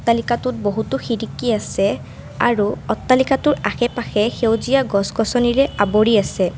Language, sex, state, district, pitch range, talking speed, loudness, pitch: Assamese, female, Assam, Kamrup Metropolitan, 205-245 Hz, 110 wpm, -18 LUFS, 225 Hz